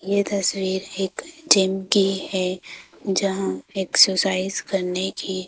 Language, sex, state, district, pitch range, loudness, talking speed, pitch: Hindi, female, Madhya Pradesh, Bhopal, 185-195 Hz, -21 LUFS, 110 wpm, 190 Hz